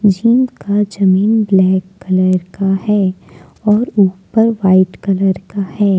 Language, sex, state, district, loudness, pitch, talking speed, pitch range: Hindi, female, Jharkhand, Deoghar, -14 LUFS, 195 Hz, 140 wpm, 185-210 Hz